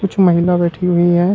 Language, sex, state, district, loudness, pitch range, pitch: Hindi, male, Uttar Pradesh, Shamli, -14 LUFS, 175-185 Hz, 180 Hz